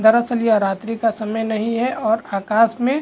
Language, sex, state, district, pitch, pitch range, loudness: Hindi, male, Chhattisgarh, Bastar, 225 Hz, 215-235 Hz, -19 LUFS